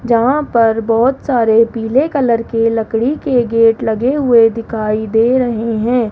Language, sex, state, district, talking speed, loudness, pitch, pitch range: Hindi, female, Rajasthan, Jaipur, 155 wpm, -14 LUFS, 230 Hz, 225-250 Hz